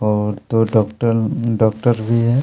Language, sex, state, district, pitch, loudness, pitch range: Hindi, male, Chhattisgarh, Kabirdham, 115 Hz, -17 LUFS, 110-115 Hz